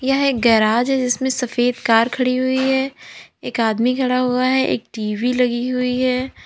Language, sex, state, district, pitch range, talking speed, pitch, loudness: Hindi, female, Uttar Pradesh, Lalitpur, 240-260 Hz, 175 wpm, 250 Hz, -18 LUFS